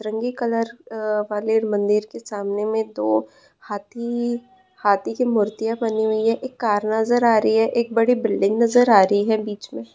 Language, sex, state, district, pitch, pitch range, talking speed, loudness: Hindi, female, West Bengal, Purulia, 220 Hz, 210-235 Hz, 185 wpm, -21 LUFS